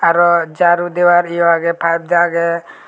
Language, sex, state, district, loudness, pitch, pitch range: Chakma, male, Tripura, Unakoti, -14 LUFS, 170 Hz, 170-175 Hz